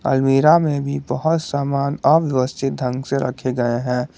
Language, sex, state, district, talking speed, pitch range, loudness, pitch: Hindi, male, Jharkhand, Garhwa, 160 wpm, 125-140 Hz, -19 LUFS, 135 Hz